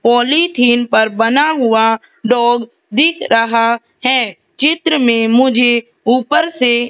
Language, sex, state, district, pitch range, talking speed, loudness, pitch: Hindi, female, Madhya Pradesh, Katni, 230-280 Hz, 120 wpm, -13 LUFS, 245 Hz